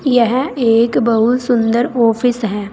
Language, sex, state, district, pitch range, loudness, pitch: Hindi, female, Uttar Pradesh, Saharanpur, 230-245 Hz, -14 LUFS, 235 Hz